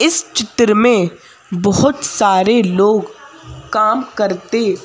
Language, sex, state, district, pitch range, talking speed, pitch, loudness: Hindi, female, Madhya Pradesh, Bhopal, 200-235 Hz, 100 wpm, 215 Hz, -14 LUFS